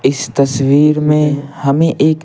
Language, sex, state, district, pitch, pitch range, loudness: Hindi, male, Bihar, Patna, 145 Hz, 140-150 Hz, -13 LUFS